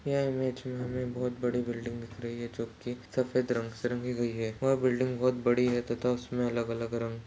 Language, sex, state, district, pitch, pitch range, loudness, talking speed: Hindi, male, Chhattisgarh, Rajnandgaon, 125 Hz, 120-125 Hz, -32 LUFS, 225 wpm